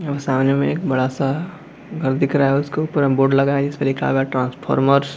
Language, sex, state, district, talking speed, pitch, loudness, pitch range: Hindi, male, Jharkhand, Jamtara, 230 wpm, 140 Hz, -19 LUFS, 135-145 Hz